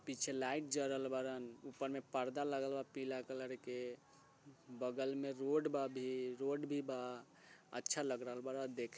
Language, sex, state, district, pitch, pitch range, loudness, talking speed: Bajjika, male, Bihar, Vaishali, 135 Hz, 125-135 Hz, -43 LUFS, 160 wpm